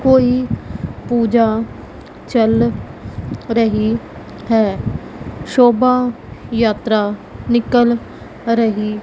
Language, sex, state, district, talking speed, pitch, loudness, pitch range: Hindi, female, Punjab, Pathankot, 60 wpm, 230 Hz, -16 LUFS, 220-240 Hz